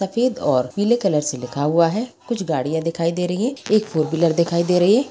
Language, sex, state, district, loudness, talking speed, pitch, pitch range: Hindi, female, Bihar, Purnia, -20 LUFS, 245 wpm, 170 Hz, 160-215 Hz